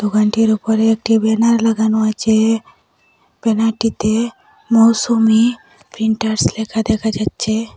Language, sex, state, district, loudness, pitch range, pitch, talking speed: Bengali, female, Assam, Hailakandi, -16 LUFS, 220-225 Hz, 220 Hz, 100 wpm